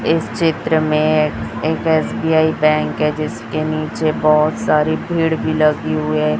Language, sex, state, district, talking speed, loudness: Hindi, male, Chhattisgarh, Raipur, 150 wpm, -17 LUFS